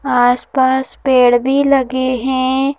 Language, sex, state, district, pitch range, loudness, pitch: Hindi, female, Madhya Pradesh, Bhopal, 250-265 Hz, -14 LUFS, 260 Hz